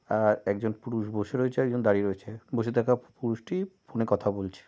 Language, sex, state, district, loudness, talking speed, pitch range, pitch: Bengali, male, West Bengal, Malda, -29 LUFS, 195 wpm, 105-125 Hz, 110 Hz